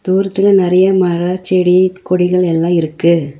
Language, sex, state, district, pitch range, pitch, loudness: Tamil, female, Tamil Nadu, Nilgiris, 170-185 Hz, 180 Hz, -13 LUFS